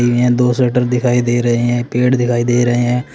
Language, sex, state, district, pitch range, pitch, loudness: Hindi, male, Uttar Pradesh, Saharanpur, 120-125 Hz, 120 Hz, -14 LUFS